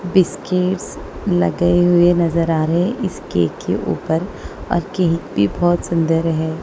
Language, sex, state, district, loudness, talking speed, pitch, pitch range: Hindi, female, Punjab, Kapurthala, -18 LUFS, 155 wpm, 170 Hz, 160-180 Hz